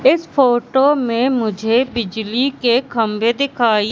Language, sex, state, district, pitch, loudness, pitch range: Hindi, female, Madhya Pradesh, Katni, 240 Hz, -16 LUFS, 225-265 Hz